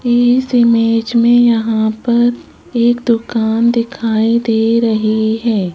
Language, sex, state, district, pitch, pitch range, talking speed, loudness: Hindi, female, Rajasthan, Jaipur, 230 Hz, 225-240 Hz, 105 wpm, -13 LUFS